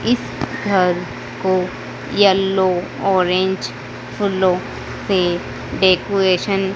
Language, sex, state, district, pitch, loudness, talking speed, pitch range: Hindi, female, Madhya Pradesh, Dhar, 185 Hz, -18 LUFS, 80 wpm, 180-195 Hz